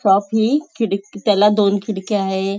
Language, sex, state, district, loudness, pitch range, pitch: Marathi, female, Maharashtra, Nagpur, -18 LUFS, 195-220 Hz, 205 Hz